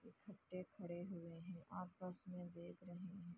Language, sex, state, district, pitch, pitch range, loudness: Hindi, female, Chhattisgarh, Bastar, 180 Hz, 175-185 Hz, -53 LUFS